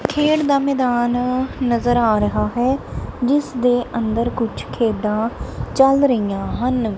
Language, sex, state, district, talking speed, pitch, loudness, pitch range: Punjabi, male, Punjab, Kapurthala, 130 wpm, 245 Hz, -19 LUFS, 230-265 Hz